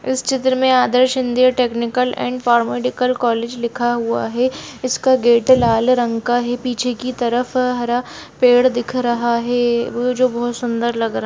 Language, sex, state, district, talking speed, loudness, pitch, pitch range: Hindi, female, Bihar, Muzaffarpur, 165 wpm, -17 LUFS, 245 Hz, 235-255 Hz